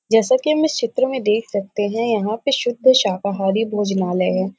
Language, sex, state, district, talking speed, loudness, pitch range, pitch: Hindi, female, Uttar Pradesh, Varanasi, 195 wpm, -19 LUFS, 200-255 Hz, 220 Hz